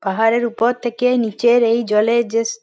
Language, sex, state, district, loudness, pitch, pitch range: Bengali, female, West Bengal, Purulia, -17 LUFS, 230 Hz, 225-240 Hz